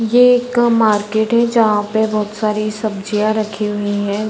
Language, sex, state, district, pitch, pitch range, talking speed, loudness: Hindi, female, Chhattisgarh, Bilaspur, 215 Hz, 210-225 Hz, 180 wpm, -16 LUFS